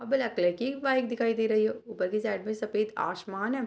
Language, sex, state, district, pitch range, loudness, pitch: Hindi, female, Bihar, Purnia, 210-250 Hz, -29 LUFS, 220 Hz